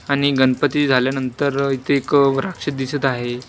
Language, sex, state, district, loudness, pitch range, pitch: Marathi, male, Maharashtra, Washim, -19 LUFS, 130-140 Hz, 135 Hz